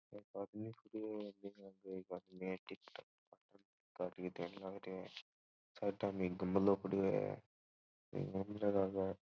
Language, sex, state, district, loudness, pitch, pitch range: Marwari, male, Rajasthan, Churu, -43 LUFS, 95 Hz, 90-100 Hz